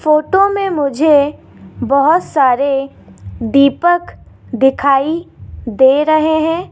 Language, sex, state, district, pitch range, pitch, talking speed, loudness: Hindi, female, Rajasthan, Jaipur, 270-320 Hz, 285 Hz, 90 wpm, -13 LUFS